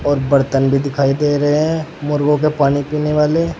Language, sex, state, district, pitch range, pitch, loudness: Hindi, male, Uttar Pradesh, Saharanpur, 140-150 Hz, 145 Hz, -16 LUFS